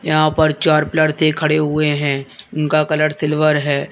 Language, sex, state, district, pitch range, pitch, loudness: Hindi, male, Uttar Pradesh, Lalitpur, 150-155 Hz, 155 Hz, -16 LUFS